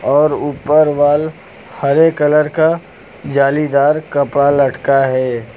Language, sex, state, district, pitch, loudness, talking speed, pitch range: Hindi, male, Uttar Pradesh, Lucknow, 145 Hz, -14 LUFS, 110 wpm, 140-155 Hz